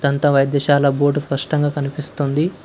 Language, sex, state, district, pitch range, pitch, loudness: Telugu, male, Karnataka, Bangalore, 140-145 Hz, 145 Hz, -18 LUFS